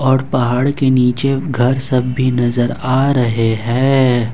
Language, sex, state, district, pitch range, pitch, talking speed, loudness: Hindi, male, Jharkhand, Ranchi, 120-135 Hz, 130 Hz, 150 wpm, -15 LUFS